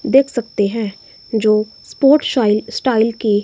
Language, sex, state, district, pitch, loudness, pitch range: Hindi, female, Himachal Pradesh, Shimla, 225 Hz, -16 LUFS, 215-255 Hz